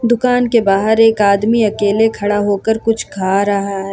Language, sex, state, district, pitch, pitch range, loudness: Hindi, female, Jharkhand, Ranchi, 210 Hz, 200-225 Hz, -14 LUFS